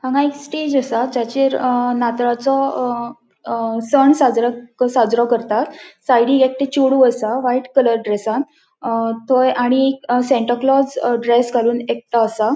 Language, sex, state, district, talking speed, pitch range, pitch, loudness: Konkani, female, Goa, North and South Goa, 120 wpm, 235-270 Hz, 245 Hz, -17 LUFS